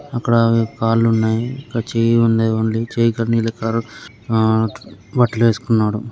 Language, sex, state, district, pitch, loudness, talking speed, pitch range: Telugu, male, Andhra Pradesh, Guntur, 115 Hz, -17 LUFS, 120 wpm, 110-115 Hz